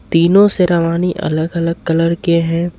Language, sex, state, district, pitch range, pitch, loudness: Hindi, male, Jharkhand, Ranchi, 165-175 Hz, 170 Hz, -14 LUFS